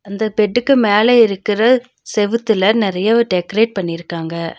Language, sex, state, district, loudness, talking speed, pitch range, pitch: Tamil, female, Tamil Nadu, Nilgiris, -15 LUFS, 105 wpm, 190-230 Hz, 215 Hz